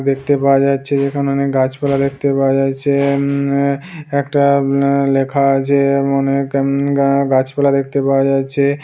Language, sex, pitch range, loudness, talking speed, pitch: Bengali, male, 135-140 Hz, -15 LUFS, 145 wpm, 140 Hz